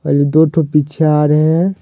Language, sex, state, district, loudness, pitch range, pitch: Hindi, male, Jharkhand, Deoghar, -13 LUFS, 150-160 Hz, 155 Hz